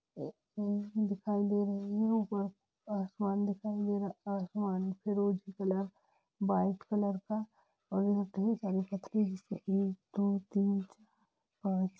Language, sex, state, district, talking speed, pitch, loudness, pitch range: Hindi, female, Jharkhand, Jamtara, 100 wpm, 200 Hz, -35 LUFS, 195-205 Hz